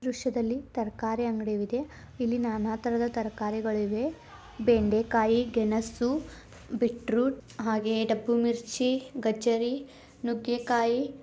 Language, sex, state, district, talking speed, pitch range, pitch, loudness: Kannada, female, Karnataka, Belgaum, 85 wpm, 225-245 Hz, 235 Hz, -29 LUFS